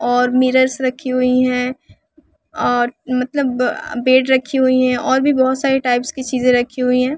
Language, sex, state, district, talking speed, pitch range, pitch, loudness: Hindi, female, Bihar, West Champaran, 185 wpm, 250-265 Hz, 255 Hz, -16 LUFS